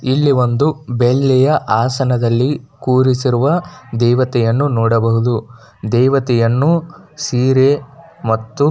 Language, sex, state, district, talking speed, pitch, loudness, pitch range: Kannada, male, Karnataka, Bijapur, 75 wpm, 130 Hz, -15 LUFS, 120-140 Hz